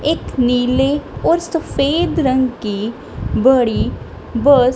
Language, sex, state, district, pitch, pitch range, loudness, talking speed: Hindi, female, Punjab, Kapurthala, 260 Hz, 245-290 Hz, -16 LUFS, 115 wpm